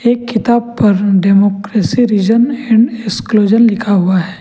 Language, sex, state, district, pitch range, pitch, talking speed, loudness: Hindi, male, Jharkhand, Ranchi, 200-235 Hz, 215 Hz, 120 wpm, -12 LUFS